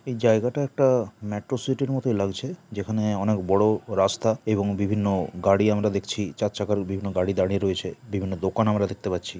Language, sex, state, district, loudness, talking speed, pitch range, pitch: Bengali, male, West Bengal, Kolkata, -25 LUFS, 170 wpm, 95-110 Hz, 105 Hz